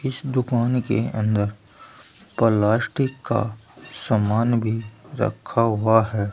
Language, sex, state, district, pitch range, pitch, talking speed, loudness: Hindi, male, Uttar Pradesh, Saharanpur, 105-120 Hz, 115 Hz, 105 wpm, -22 LUFS